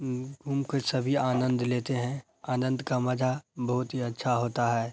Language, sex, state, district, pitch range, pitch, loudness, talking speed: Hindi, female, Bihar, Araria, 125-130 Hz, 125 Hz, -29 LUFS, 170 wpm